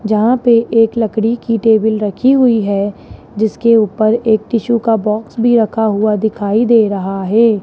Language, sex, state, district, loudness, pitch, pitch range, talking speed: Hindi, male, Rajasthan, Jaipur, -13 LUFS, 220 Hz, 215-230 Hz, 175 wpm